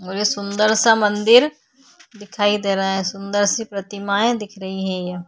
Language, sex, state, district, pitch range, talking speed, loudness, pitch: Hindi, female, Uttar Pradesh, Hamirpur, 195-220 Hz, 180 wpm, -19 LUFS, 205 Hz